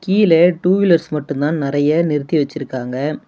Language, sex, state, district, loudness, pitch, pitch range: Tamil, male, Tamil Nadu, Namakkal, -16 LUFS, 155 Hz, 145-170 Hz